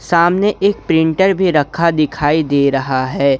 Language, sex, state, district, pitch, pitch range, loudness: Hindi, male, Jharkhand, Garhwa, 160 Hz, 140-185 Hz, -14 LUFS